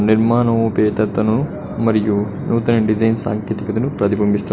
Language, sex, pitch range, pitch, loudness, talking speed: Telugu, male, 105-115 Hz, 110 Hz, -17 LUFS, 80 wpm